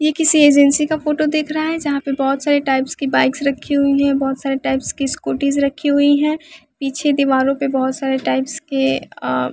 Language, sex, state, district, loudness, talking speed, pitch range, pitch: Hindi, female, Bihar, West Champaran, -17 LUFS, 220 wpm, 270-290 Hz, 280 Hz